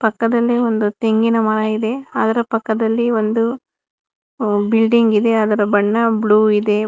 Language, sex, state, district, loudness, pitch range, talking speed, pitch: Kannada, female, Karnataka, Bangalore, -16 LUFS, 215-230 Hz, 120 wpm, 225 Hz